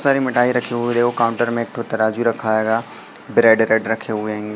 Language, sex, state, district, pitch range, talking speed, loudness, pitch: Hindi, male, Madhya Pradesh, Katni, 110-120 Hz, 250 wpm, -18 LUFS, 115 Hz